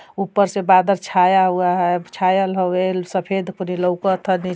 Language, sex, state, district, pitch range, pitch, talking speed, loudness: Bhojpuri, female, Uttar Pradesh, Ghazipur, 180-190 Hz, 185 Hz, 185 wpm, -18 LUFS